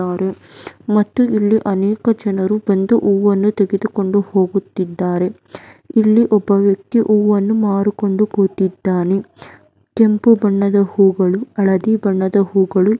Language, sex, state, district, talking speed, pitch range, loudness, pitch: Kannada, female, Karnataka, Mysore, 105 wpm, 190-215 Hz, -15 LUFS, 200 Hz